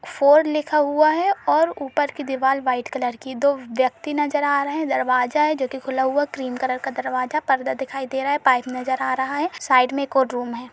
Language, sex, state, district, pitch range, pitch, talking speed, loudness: Hindi, female, Uttar Pradesh, Budaun, 260-295 Hz, 270 Hz, 240 wpm, -21 LUFS